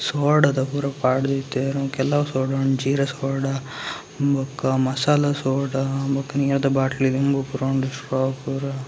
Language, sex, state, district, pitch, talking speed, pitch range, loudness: Tulu, male, Karnataka, Dakshina Kannada, 135 Hz, 120 wpm, 135-140 Hz, -22 LUFS